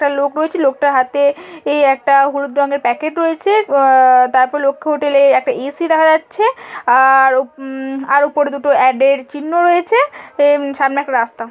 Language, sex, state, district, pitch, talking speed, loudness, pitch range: Bengali, female, West Bengal, Purulia, 280 Hz, 180 wpm, -13 LUFS, 270-310 Hz